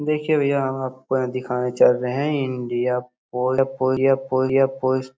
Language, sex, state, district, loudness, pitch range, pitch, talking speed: Hindi, male, Bihar, Supaul, -21 LUFS, 125-135 Hz, 130 Hz, 185 wpm